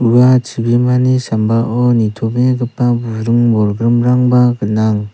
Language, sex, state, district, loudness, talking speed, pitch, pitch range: Garo, male, Meghalaya, South Garo Hills, -13 LUFS, 80 wpm, 120 Hz, 115-125 Hz